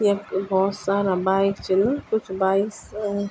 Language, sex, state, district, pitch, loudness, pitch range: Garhwali, female, Uttarakhand, Tehri Garhwal, 200 Hz, -23 LUFS, 190-205 Hz